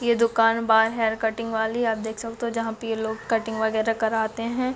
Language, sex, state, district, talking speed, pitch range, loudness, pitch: Hindi, female, Chhattisgarh, Bilaspur, 215 wpm, 220-230 Hz, -24 LUFS, 225 Hz